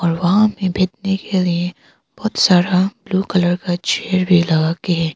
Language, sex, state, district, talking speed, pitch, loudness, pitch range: Hindi, female, Arunachal Pradesh, Papum Pare, 185 wpm, 185 Hz, -17 LUFS, 175-195 Hz